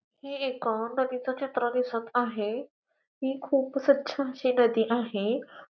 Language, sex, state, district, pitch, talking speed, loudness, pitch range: Marathi, female, Maharashtra, Pune, 250 Hz, 125 wpm, -28 LUFS, 235-270 Hz